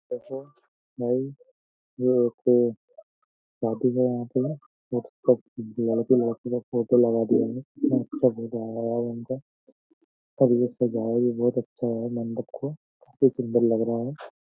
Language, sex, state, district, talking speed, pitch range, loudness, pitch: Hindi, male, Uttar Pradesh, Jyotiba Phule Nagar, 145 wpm, 115-130 Hz, -25 LUFS, 125 Hz